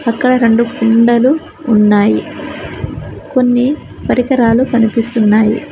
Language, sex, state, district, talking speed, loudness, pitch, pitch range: Telugu, female, Telangana, Mahabubabad, 75 wpm, -12 LUFS, 235 Hz, 225-255 Hz